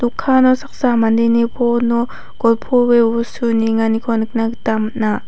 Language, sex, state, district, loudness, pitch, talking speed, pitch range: Garo, female, Meghalaya, West Garo Hills, -16 LUFS, 235 Hz, 115 wpm, 225-240 Hz